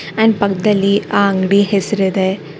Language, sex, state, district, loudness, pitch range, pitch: Kannada, female, Karnataka, Bangalore, -14 LUFS, 190-205 Hz, 200 Hz